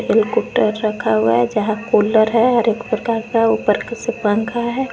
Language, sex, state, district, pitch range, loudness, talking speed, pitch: Hindi, female, Jharkhand, Garhwa, 210-235 Hz, -17 LUFS, 180 wpm, 220 Hz